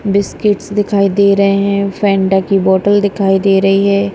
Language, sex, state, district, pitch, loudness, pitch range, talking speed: Hindi, female, Punjab, Kapurthala, 200 Hz, -12 LUFS, 195-200 Hz, 175 wpm